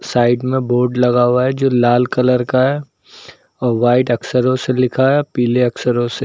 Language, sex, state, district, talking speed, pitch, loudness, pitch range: Hindi, male, Uttar Pradesh, Lucknow, 190 wpm, 125 Hz, -15 LUFS, 120-130 Hz